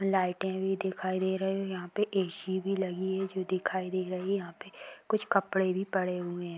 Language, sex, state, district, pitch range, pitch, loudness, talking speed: Hindi, female, Bihar, Samastipur, 185-195 Hz, 190 Hz, -32 LUFS, 230 wpm